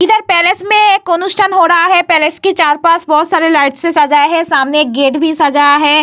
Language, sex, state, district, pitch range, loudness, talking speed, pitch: Hindi, female, Bihar, Vaishali, 295-360 Hz, -10 LUFS, 260 wpm, 330 Hz